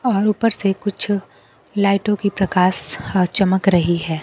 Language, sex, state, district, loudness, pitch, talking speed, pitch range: Hindi, female, Bihar, Kaimur, -17 LUFS, 195 Hz, 155 wpm, 185-205 Hz